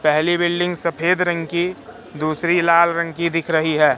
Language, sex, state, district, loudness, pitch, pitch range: Hindi, male, Madhya Pradesh, Katni, -18 LUFS, 170 Hz, 160-175 Hz